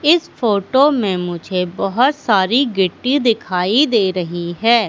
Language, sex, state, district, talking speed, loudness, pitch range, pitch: Hindi, female, Madhya Pradesh, Katni, 135 wpm, -16 LUFS, 180-260 Hz, 215 Hz